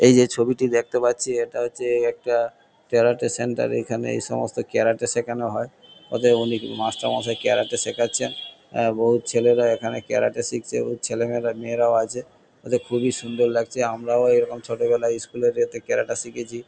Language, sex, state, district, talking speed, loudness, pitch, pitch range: Bengali, male, West Bengal, Kolkata, 160 wpm, -22 LUFS, 120 Hz, 115-120 Hz